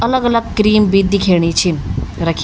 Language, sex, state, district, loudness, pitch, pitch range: Garhwali, female, Uttarakhand, Tehri Garhwal, -14 LUFS, 195 Hz, 170-215 Hz